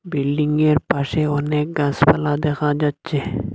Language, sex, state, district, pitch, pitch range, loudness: Bengali, male, Assam, Hailakandi, 150 Hz, 145-150 Hz, -19 LUFS